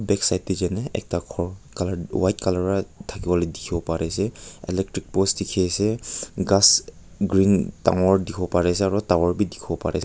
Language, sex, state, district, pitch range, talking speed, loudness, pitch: Nagamese, male, Nagaland, Kohima, 90-100 Hz, 185 wpm, -22 LUFS, 95 Hz